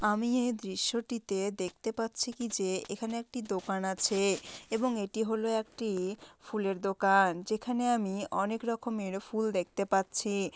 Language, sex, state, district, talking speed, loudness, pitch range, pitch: Bengali, female, West Bengal, Malda, 135 wpm, -32 LUFS, 195-230 Hz, 210 Hz